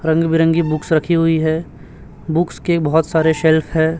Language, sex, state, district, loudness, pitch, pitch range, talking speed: Hindi, male, Chhattisgarh, Raipur, -16 LUFS, 160 Hz, 160-165 Hz, 180 wpm